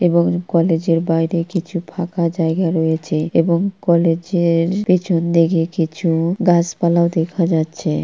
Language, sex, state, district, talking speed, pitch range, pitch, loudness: Bengali, male, West Bengal, Purulia, 125 wpm, 165-175 Hz, 170 Hz, -17 LUFS